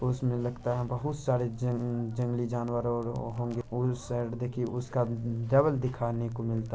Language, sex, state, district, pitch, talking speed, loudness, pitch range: Hindi, male, Bihar, Araria, 120 Hz, 170 wpm, -31 LUFS, 120-125 Hz